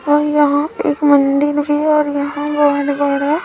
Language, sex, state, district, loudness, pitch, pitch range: Hindi, female, Chhattisgarh, Raipur, -15 LUFS, 290 Hz, 285-295 Hz